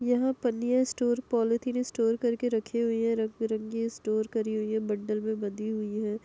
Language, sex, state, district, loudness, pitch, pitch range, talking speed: Hindi, female, Uttar Pradesh, Etah, -29 LUFS, 225 Hz, 215-240 Hz, 190 wpm